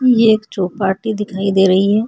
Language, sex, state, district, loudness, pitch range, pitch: Hindi, female, Uttar Pradesh, Etah, -15 LUFS, 190-220 Hz, 205 Hz